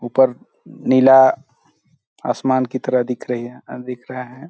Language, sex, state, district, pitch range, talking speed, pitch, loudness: Hindi, male, Chhattisgarh, Balrampur, 125-130 Hz, 145 wpm, 125 Hz, -17 LUFS